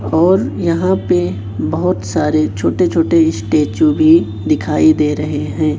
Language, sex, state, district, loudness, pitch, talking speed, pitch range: Hindi, male, Chhattisgarh, Raipur, -14 LUFS, 155 Hz, 135 wpm, 110-170 Hz